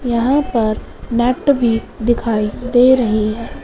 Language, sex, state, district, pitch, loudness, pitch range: Hindi, female, Punjab, Fazilka, 235 Hz, -16 LUFS, 225-250 Hz